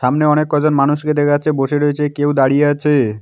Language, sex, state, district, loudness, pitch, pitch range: Bengali, male, West Bengal, Alipurduar, -15 LUFS, 145 Hz, 140-150 Hz